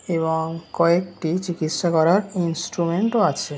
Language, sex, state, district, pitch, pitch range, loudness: Bengali, male, West Bengal, Dakshin Dinajpur, 170 Hz, 160-180 Hz, -21 LUFS